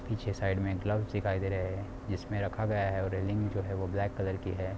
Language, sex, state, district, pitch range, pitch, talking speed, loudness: Hindi, male, Bihar, Samastipur, 95-105 Hz, 95 Hz, 265 wpm, -33 LUFS